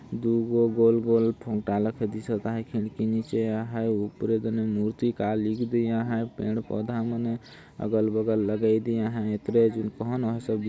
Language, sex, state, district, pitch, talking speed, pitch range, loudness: Sadri, male, Chhattisgarh, Jashpur, 110 Hz, 145 wpm, 110-115 Hz, -27 LUFS